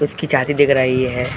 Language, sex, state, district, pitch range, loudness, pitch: Hindi, male, Uttar Pradesh, Jalaun, 130-145 Hz, -16 LUFS, 135 Hz